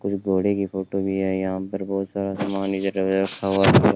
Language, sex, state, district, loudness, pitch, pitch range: Hindi, male, Rajasthan, Bikaner, -23 LUFS, 95 Hz, 95-100 Hz